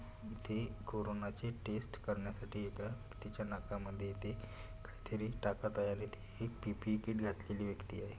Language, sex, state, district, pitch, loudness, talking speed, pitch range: Marathi, male, Maharashtra, Solapur, 105 Hz, -43 LUFS, 130 wpm, 100-110 Hz